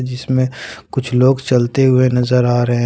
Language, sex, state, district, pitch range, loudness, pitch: Hindi, male, Jharkhand, Ranchi, 125-130 Hz, -15 LUFS, 125 Hz